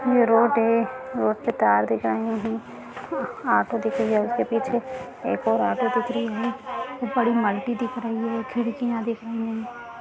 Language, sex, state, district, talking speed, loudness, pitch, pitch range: Hindi, female, Bihar, Jahanabad, 180 wpm, -24 LUFS, 235 Hz, 225-250 Hz